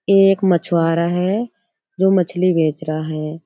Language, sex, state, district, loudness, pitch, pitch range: Hindi, female, Uttar Pradesh, Budaun, -17 LUFS, 175 Hz, 160-195 Hz